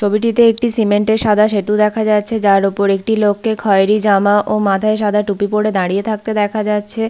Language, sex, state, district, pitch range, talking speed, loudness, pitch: Bengali, female, West Bengal, Paschim Medinipur, 205-220 Hz, 195 wpm, -14 LUFS, 210 Hz